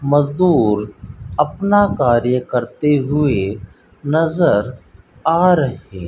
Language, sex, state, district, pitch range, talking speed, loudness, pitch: Hindi, male, Rajasthan, Bikaner, 105-150 Hz, 90 wpm, -16 LUFS, 130 Hz